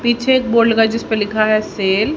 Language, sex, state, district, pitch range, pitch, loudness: Hindi, female, Haryana, Rohtak, 215-235 Hz, 225 Hz, -15 LUFS